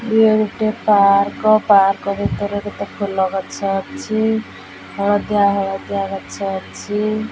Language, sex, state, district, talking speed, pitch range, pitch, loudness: Odia, female, Odisha, Khordha, 105 wpm, 195-215 Hz, 205 Hz, -18 LUFS